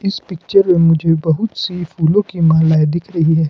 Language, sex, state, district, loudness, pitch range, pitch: Hindi, male, Himachal Pradesh, Shimla, -14 LUFS, 160-185 Hz, 165 Hz